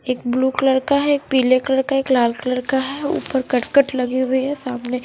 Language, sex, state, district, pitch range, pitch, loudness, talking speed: Hindi, female, Punjab, Fazilka, 255-270 Hz, 260 Hz, -19 LUFS, 275 wpm